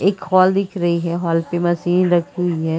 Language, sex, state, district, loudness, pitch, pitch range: Hindi, female, Uttar Pradesh, Muzaffarnagar, -18 LUFS, 175 Hz, 170-185 Hz